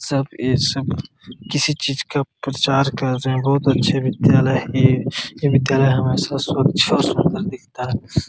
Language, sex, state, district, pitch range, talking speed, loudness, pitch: Hindi, male, Jharkhand, Jamtara, 130-140 Hz, 145 wpm, -19 LUFS, 135 Hz